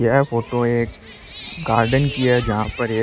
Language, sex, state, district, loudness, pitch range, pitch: Rajasthani, male, Rajasthan, Churu, -19 LUFS, 115-125 Hz, 120 Hz